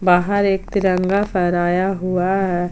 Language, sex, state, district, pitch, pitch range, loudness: Hindi, female, Jharkhand, Palamu, 185 Hz, 180-195 Hz, -18 LUFS